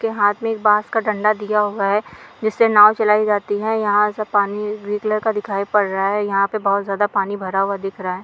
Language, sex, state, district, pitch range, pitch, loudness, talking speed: Hindi, female, Bihar, Madhepura, 200-215 Hz, 210 Hz, -18 LUFS, 255 wpm